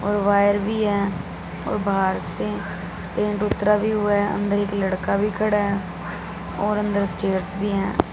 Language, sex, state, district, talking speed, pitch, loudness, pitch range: Hindi, female, Punjab, Fazilka, 170 wpm, 205 Hz, -23 LUFS, 200-210 Hz